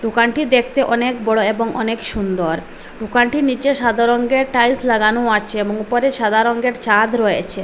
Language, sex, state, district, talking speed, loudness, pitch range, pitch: Bengali, female, Assam, Hailakandi, 155 wpm, -16 LUFS, 215-245 Hz, 235 Hz